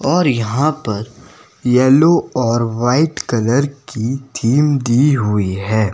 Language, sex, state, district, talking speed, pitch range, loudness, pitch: Hindi, male, Himachal Pradesh, Shimla, 120 wpm, 115-140 Hz, -16 LUFS, 125 Hz